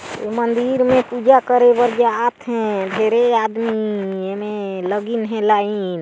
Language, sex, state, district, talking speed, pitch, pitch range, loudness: Chhattisgarhi, female, Chhattisgarh, Sarguja, 140 wpm, 225 Hz, 205-240 Hz, -17 LUFS